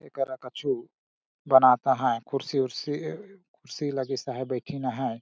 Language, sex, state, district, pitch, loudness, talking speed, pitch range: Surgujia, male, Chhattisgarh, Sarguja, 135 Hz, -27 LUFS, 115 wpm, 130-145 Hz